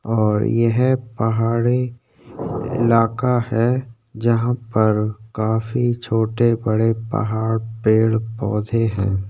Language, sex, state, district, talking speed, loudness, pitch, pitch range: Hindi, male, Uttarakhand, Tehri Garhwal, 90 wpm, -19 LUFS, 115 Hz, 110-120 Hz